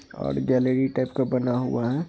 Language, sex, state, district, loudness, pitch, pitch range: Hindi, male, Bihar, Madhepura, -24 LUFS, 130 Hz, 125-130 Hz